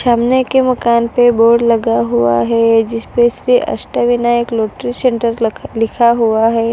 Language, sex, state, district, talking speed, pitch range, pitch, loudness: Hindi, female, Gujarat, Valsad, 150 wpm, 225-245 Hz, 235 Hz, -13 LUFS